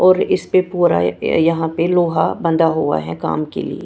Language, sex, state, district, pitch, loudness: Hindi, female, Punjab, Kapurthala, 165 Hz, -17 LUFS